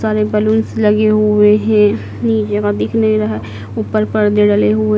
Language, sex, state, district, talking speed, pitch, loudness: Hindi, female, Madhya Pradesh, Dhar, 170 wpm, 205 Hz, -14 LUFS